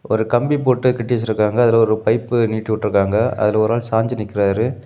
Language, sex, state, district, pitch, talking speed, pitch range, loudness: Tamil, male, Tamil Nadu, Kanyakumari, 115 Hz, 175 wpm, 110-120 Hz, -17 LUFS